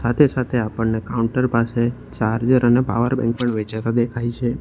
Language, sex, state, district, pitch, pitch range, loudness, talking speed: Gujarati, male, Gujarat, Valsad, 120 Hz, 115-125 Hz, -20 LUFS, 155 wpm